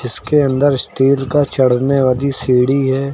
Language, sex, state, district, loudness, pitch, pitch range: Hindi, male, Uttar Pradesh, Lucknow, -14 LUFS, 135 Hz, 130-140 Hz